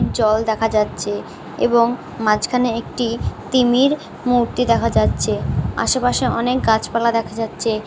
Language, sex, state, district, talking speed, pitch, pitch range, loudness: Bengali, female, West Bengal, North 24 Parganas, 115 wpm, 230 Hz, 220-245 Hz, -18 LUFS